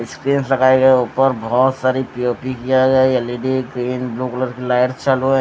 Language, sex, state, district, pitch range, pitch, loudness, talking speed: Hindi, male, Odisha, Nuapada, 125-130 Hz, 130 Hz, -17 LUFS, 210 wpm